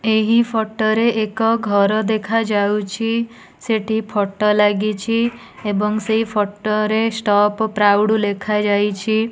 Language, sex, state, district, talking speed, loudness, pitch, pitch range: Odia, female, Odisha, Nuapada, 105 wpm, -18 LUFS, 215 Hz, 210-225 Hz